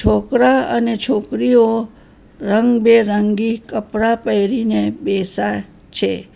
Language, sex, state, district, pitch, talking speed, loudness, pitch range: Gujarati, female, Gujarat, Valsad, 220 Hz, 75 wpm, -16 LUFS, 200-230 Hz